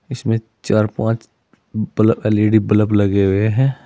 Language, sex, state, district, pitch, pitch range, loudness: Hindi, male, Uttar Pradesh, Saharanpur, 110 Hz, 105-115 Hz, -17 LUFS